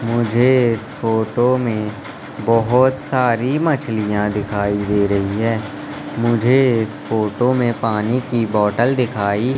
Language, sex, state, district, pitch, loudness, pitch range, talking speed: Hindi, male, Madhya Pradesh, Katni, 115 Hz, -18 LUFS, 105-125 Hz, 120 wpm